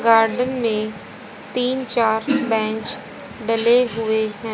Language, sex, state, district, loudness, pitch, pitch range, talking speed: Hindi, female, Haryana, Rohtak, -20 LUFS, 225 Hz, 220-250 Hz, 105 wpm